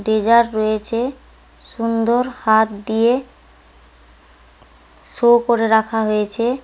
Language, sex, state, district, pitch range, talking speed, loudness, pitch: Bengali, female, West Bengal, Paschim Medinipur, 220-240 Hz, 80 wpm, -18 LUFS, 230 Hz